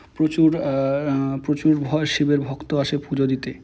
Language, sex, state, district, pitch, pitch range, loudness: Bengali, male, West Bengal, Malda, 145 Hz, 135-150 Hz, -21 LUFS